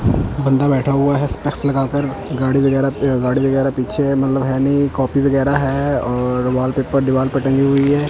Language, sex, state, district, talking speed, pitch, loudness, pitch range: Hindi, male, Punjab, Kapurthala, 190 wpm, 135 Hz, -17 LUFS, 130-140 Hz